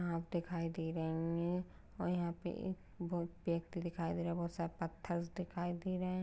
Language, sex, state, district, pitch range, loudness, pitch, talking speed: Hindi, female, Uttarakhand, Uttarkashi, 170-180 Hz, -41 LUFS, 170 Hz, 200 wpm